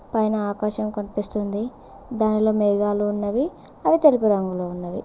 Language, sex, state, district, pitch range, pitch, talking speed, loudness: Telugu, female, Telangana, Mahabubabad, 205-220 Hz, 210 Hz, 120 wpm, -20 LUFS